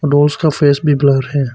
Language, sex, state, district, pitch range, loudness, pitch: Hindi, male, Arunachal Pradesh, Papum Pare, 140-150 Hz, -13 LUFS, 145 Hz